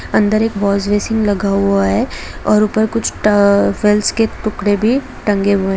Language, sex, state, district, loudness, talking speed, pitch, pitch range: Hindi, female, Jharkhand, Jamtara, -15 LUFS, 175 wpm, 210 Hz, 200-220 Hz